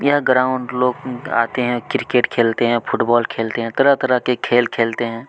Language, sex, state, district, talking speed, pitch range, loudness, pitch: Hindi, male, Chhattisgarh, Kabirdham, 215 wpm, 115-130 Hz, -18 LUFS, 120 Hz